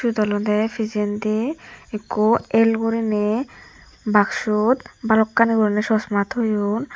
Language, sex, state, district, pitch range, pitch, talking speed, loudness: Chakma, female, Tripura, Dhalai, 210-230 Hz, 215 Hz, 95 wpm, -20 LUFS